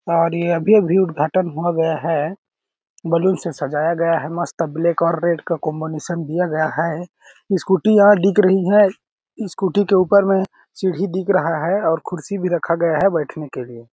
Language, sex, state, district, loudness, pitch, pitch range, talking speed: Hindi, male, Chhattisgarh, Balrampur, -18 LUFS, 170 Hz, 165-190 Hz, 180 wpm